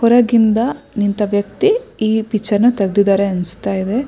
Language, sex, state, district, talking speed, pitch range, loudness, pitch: Kannada, female, Karnataka, Shimoga, 130 wpm, 200-235 Hz, -15 LUFS, 215 Hz